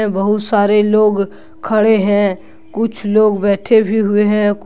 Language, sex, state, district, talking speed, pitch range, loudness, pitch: Hindi, male, Jharkhand, Deoghar, 140 wpm, 200-215 Hz, -14 LUFS, 210 Hz